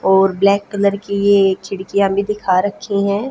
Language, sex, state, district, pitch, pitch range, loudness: Hindi, female, Haryana, Jhajjar, 200 Hz, 195-200 Hz, -16 LUFS